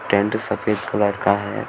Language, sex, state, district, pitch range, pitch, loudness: Hindi, male, Uttar Pradesh, Shamli, 100-110 Hz, 100 Hz, -21 LUFS